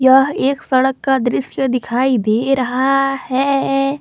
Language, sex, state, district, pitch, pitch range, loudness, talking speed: Hindi, female, Jharkhand, Palamu, 265 Hz, 255-275 Hz, -16 LUFS, 135 wpm